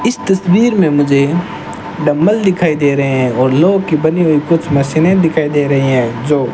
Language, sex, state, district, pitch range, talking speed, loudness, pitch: Hindi, male, Rajasthan, Bikaner, 140-175 Hz, 200 wpm, -12 LUFS, 155 Hz